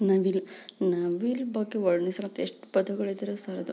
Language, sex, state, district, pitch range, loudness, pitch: Kannada, female, Karnataka, Belgaum, 185-205 Hz, -29 LUFS, 195 Hz